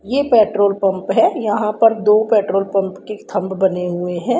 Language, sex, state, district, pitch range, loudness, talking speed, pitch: Hindi, female, Haryana, Rohtak, 190-220 Hz, -16 LUFS, 190 wpm, 205 Hz